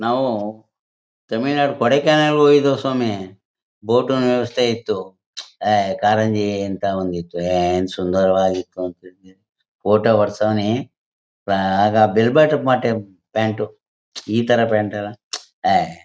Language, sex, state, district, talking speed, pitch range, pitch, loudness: Kannada, male, Karnataka, Mysore, 95 wpm, 95-120 Hz, 105 Hz, -18 LUFS